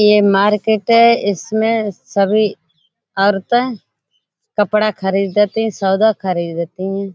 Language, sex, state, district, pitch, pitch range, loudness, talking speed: Hindi, female, Uttar Pradesh, Budaun, 200 Hz, 190-215 Hz, -15 LUFS, 100 wpm